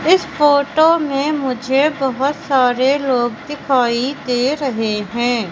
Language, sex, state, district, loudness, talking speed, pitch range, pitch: Hindi, female, Madhya Pradesh, Katni, -16 LUFS, 120 wpm, 245-290 Hz, 270 Hz